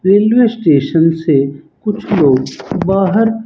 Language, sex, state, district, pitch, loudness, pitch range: Hindi, male, Rajasthan, Bikaner, 190 Hz, -13 LUFS, 150-210 Hz